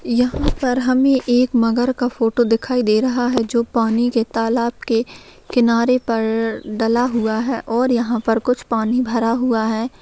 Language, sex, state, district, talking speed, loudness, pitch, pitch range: Hindi, female, Bihar, Begusarai, 175 wpm, -18 LUFS, 235 Hz, 225-250 Hz